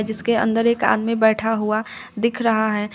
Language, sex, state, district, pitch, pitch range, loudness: Hindi, female, Uttar Pradesh, Shamli, 225 Hz, 215-230 Hz, -19 LUFS